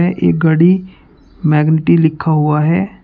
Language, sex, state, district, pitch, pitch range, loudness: Hindi, male, Uttar Pradesh, Shamli, 160 Hz, 155-175 Hz, -13 LUFS